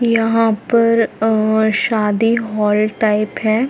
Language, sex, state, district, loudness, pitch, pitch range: Hindi, female, Chhattisgarh, Bilaspur, -15 LUFS, 220 Hz, 215-230 Hz